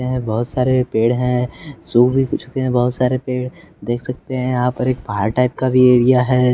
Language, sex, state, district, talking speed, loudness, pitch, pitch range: Hindi, male, Bihar, West Champaran, 210 wpm, -17 LUFS, 125 Hz, 125-130 Hz